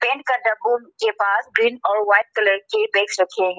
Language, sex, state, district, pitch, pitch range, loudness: Hindi, female, Arunachal Pradesh, Lower Dibang Valley, 215 Hz, 200-240 Hz, -19 LUFS